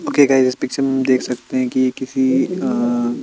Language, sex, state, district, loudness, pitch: Hindi, male, Chandigarh, Chandigarh, -17 LUFS, 130 Hz